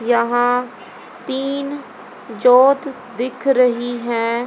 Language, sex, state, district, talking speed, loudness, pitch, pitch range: Hindi, female, Haryana, Charkhi Dadri, 80 wpm, -17 LUFS, 250 Hz, 240-270 Hz